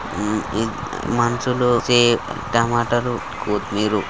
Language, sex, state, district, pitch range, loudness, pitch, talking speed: Telugu, male, Andhra Pradesh, Guntur, 105-120 Hz, -20 LUFS, 120 Hz, 75 wpm